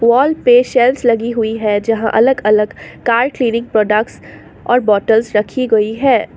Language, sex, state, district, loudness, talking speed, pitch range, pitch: Hindi, female, Assam, Sonitpur, -14 LUFS, 140 wpm, 215-245 Hz, 230 Hz